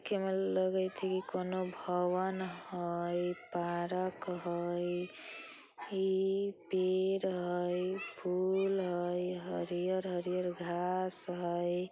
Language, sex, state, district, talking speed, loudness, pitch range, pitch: Bajjika, female, Bihar, Vaishali, 85 wpm, -35 LUFS, 175-185 Hz, 180 Hz